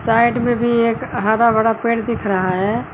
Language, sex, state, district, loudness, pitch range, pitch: Hindi, female, Uttar Pradesh, Lucknow, -17 LUFS, 220-235 Hz, 230 Hz